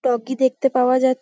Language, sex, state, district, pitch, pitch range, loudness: Bengali, female, West Bengal, Paschim Medinipur, 260 Hz, 250-260 Hz, -19 LUFS